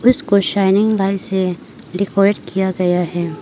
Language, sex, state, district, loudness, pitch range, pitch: Hindi, female, Arunachal Pradesh, Papum Pare, -16 LUFS, 180-200 Hz, 190 Hz